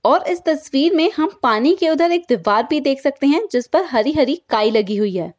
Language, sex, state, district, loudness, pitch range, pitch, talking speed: Hindi, female, Bihar, Saran, -17 LUFS, 230-325 Hz, 290 Hz, 235 wpm